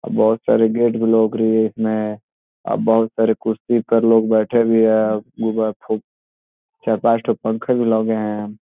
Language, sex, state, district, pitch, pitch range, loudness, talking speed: Hindi, male, Bihar, Gopalganj, 110 Hz, 110-115 Hz, -18 LUFS, 175 wpm